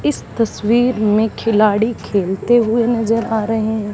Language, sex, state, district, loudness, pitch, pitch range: Hindi, female, Haryana, Charkhi Dadri, -16 LUFS, 220 Hz, 210-230 Hz